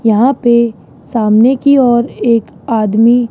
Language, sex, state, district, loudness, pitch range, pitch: Hindi, male, Rajasthan, Jaipur, -11 LUFS, 220-245 Hz, 235 Hz